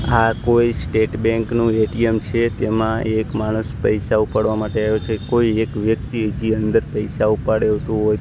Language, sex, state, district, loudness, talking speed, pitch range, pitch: Gujarati, male, Gujarat, Gandhinagar, -19 LUFS, 160 wpm, 110-115 Hz, 110 Hz